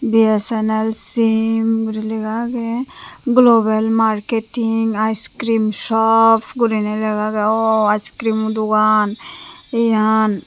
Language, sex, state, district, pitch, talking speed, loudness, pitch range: Chakma, female, Tripura, Unakoti, 220 Hz, 90 wpm, -17 LUFS, 215-225 Hz